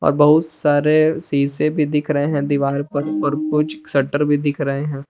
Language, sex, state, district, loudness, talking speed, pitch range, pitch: Hindi, male, Jharkhand, Palamu, -18 LUFS, 200 wpm, 145-150 Hz, 145 Hz